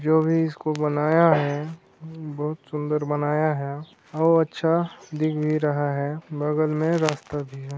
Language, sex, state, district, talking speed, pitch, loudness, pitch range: Hindi, male, Chhattisgarh, Sarguja, 155 wpm, 155 Hz, -24 LUFS, 150-160 Hz